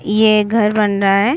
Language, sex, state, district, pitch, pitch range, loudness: Hindi, female, Bihar, Saran, 210 Hz, 200-215 Hz, -14 LUFS